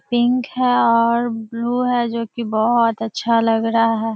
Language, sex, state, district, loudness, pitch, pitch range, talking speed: Hindi, female, Bihar, Kishanganj, -18 LUFS, 230 Hz, 225-240 Hz, 175 wpm